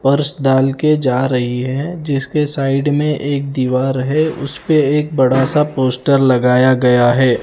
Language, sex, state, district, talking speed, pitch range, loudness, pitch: Hindi, male, Himachal Pradesh, Shimla, 160 wpm, 130-150 Hz, -15 LUFS, 135 Hz